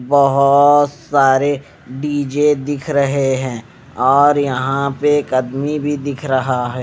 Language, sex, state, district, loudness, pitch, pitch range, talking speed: Hindi, male, Punjab, Fazilka, -15 LUFS, 140 Hz, 135-145 Hz, 130 wpm